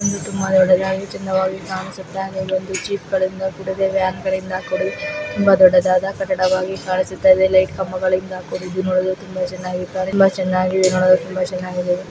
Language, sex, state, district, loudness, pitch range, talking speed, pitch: Kannada, female, Karnataka, Chamarajanagar, -18 LUFS, 185-190 Hz, 135 wpm, 190 Hz